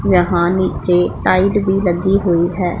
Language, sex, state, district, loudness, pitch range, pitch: Hindi, female, Punjab, Pathankot, -15 LUFS, 175-190 Hz, 180 Hz